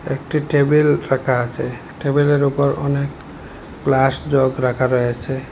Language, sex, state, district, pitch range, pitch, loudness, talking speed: Bengali, male, Assam, Hailakandi, 130-145 Hz, 140 Hz, -18 LUFS, 120 wpm